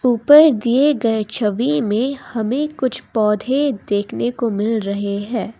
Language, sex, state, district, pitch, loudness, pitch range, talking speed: Hindi, female, Assam, Kamrup Metropolitan, 235 Hz, -17 LUFS, 215-265 Hz, 140 wpm